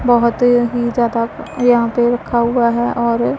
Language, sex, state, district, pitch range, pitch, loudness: Hindi, female, Punjab, Pathankot, 235-245 Hz, 240 Hz, -15 LUFS